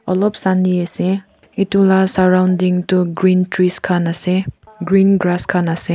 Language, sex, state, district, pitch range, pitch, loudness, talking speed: Nagamese, female, Nagaland, Kohima, 180-190 Hz, 185 Hz, -15 LUFS, 150 wpm